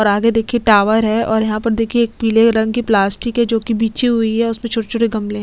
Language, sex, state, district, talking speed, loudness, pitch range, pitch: Hindi, female, Chhattisgarh, Sukma, 275 wpm, -15 LUFS, 220-230 Hz, 225 Hz